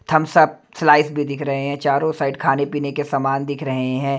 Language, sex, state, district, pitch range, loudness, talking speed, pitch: Hindi, male, Himachal Pradesh, Shimla, 135-145 Hz, -19 LUFS, 200 wpm, 140 Hz